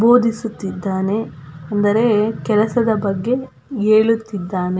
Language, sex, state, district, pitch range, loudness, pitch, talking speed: Kannada, female, Karnataka, Belgaum, 195-225 Hz, -18 LUFS, 215 Hz, 60 wpm